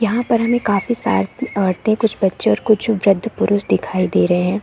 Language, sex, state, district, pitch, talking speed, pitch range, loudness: Hindi, female, Chhattisgarh, Korba, 210 Hz, 205 wpm, 190-225 Hz, -17 LUFS